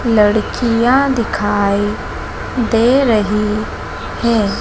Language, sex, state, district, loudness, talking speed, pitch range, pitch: Hindi, female, Madhya Pradesh, Dhar, -15 LUFS, 65 wpm, 210-240 Hz, 225 Hz